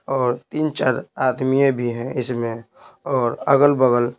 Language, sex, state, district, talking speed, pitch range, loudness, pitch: Hindi, male, Bihar, Patna, 115 wpm, 120-135 Hz, -19 LUFS, 130 Hz